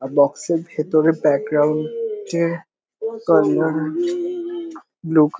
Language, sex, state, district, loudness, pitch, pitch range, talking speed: Bengali, male, West Bengal, Kolkata, -20 LUFS, 165 Hz, 155-255 Hz, 100 wpm